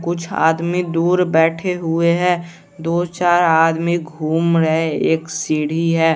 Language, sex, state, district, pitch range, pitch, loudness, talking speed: Hindi, male, Bihar, West Champaran, 160-175 Hz, 165 Hz, -17 LUFS, 135 wpm